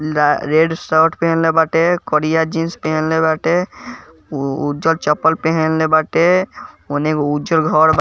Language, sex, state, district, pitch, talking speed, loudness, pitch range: Bhojpuri, male, Bihar, East Champaran, 160 Hz, 125 wpm, -16 LUFS, 155-165 Hz